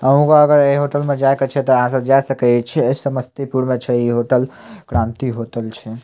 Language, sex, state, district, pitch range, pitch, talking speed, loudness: Maithili, male, Bihar, Samastipur, 120-140 Hz, 130 Hz, 230 wpm, -16 LUFS